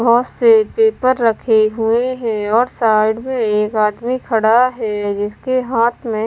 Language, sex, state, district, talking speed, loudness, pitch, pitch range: Hindi, female, Bihar, West Champaran, 155 wpm, -16 LUFS, 230 Hz, 215-255 Hz